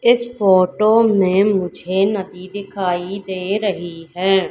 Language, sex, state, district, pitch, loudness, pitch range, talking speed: Hindi, female, Madhya Pradesh, Katni, 195 Hz, -17 LUFS, 185-205 Hz, 120 wpm